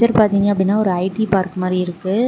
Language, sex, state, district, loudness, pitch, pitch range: Tamil, female, Tamil Nadu, Namakkal, -17 LUFS, 195 Hz, 185-215 Hz